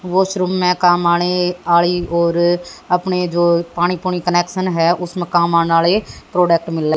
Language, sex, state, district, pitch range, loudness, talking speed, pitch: Hindi, female, Haryana, Jhajjar, 170-180 Hz, -16 LUFS, 165 wpm, 175 Hz